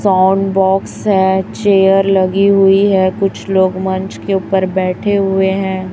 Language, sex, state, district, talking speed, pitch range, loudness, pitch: Hindi, female, Chhattisgarh, Raipur, 150 wpm, 190-195 Hz, -13 LUFS, 190 Hz